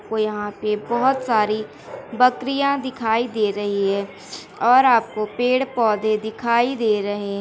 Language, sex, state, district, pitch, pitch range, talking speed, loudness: Hindi, male, Bihar, Gaya, 220 Hz, 210-245 Hz, 145 wpm, -20 LUFS